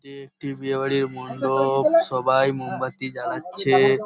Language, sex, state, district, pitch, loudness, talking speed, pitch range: Bengali, male, West Bengal, Paschim Medinipur, 135 Hz, -22 LUFS, 105 wpm, 135-140 Hz